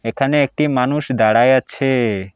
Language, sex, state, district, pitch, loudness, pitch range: Bengali, male, West Bengal, Alipurduar, 130 Hz, -16 LUFS, 115-135 Hz